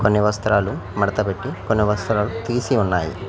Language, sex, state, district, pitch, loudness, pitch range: Telugu, male, Telangana, Mahabubabad, 105 Hz, -21 LUFS, 95-110 Hz